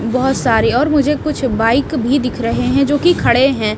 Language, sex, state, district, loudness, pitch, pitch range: Hindi, female, Haryana, Rohtak, -14 LUFS, 265 Hz, 240-290 Hz